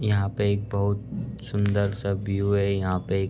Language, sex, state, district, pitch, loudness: Hindi, male, Uttar Pradesh, Budaun, 100 Hz, -26 LUFS